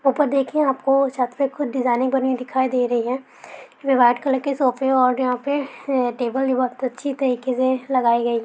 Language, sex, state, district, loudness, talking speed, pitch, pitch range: Hindi, female, Jharkhand, Sahebganj, -21 LUFS, 205 wpm, 260 Hz, 250-270 Hz